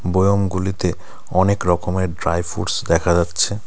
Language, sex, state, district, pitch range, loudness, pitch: Bengali, male, West Bengal, Cooch Behar, 85-95 Hz, -19 LUFS, 90 Hz